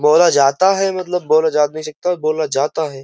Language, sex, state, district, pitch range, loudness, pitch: Hindi, male, Uttar Pradesh, Jyotiba Phule Nagar, 150-180 Hz, -16 LUFS, 155 Hz